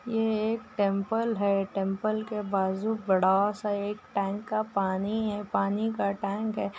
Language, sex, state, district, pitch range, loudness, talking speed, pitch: Hindi, female, Uttar Pradesh, Ghazipur, 195-215 Hz, -28 LUFS, 160 wpm, 205 Hz